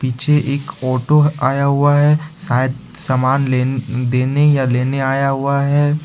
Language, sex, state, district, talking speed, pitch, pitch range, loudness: Hindi, male, Jharkhand, Ranchi, 150 wpm, 140 Hz, 130-145 Hz, -16 LUFS